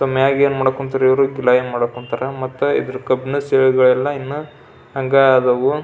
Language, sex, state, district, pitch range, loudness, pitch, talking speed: Kannada, male, Karnataka, Belgaum, 130-135 Hz, -17 LUFS, 135 Hz, 165 wpm